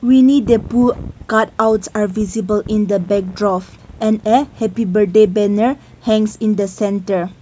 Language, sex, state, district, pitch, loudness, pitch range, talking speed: English, female, Nagaland, Kohima, 215 Hz, -16 LUFS, 205-225 Hz, 155 wpm